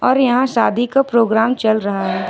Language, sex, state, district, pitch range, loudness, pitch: Hindi, female, Jharkhand, Ranchi, 215-250 Hz, -16 LUFS, 230 Hz